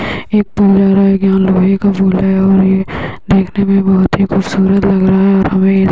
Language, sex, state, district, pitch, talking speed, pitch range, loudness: Hindi, female, Uttar Pradesh, Hamirpur, 195 Hz, 245 wpm, 190-195 Hz, -11 LUFS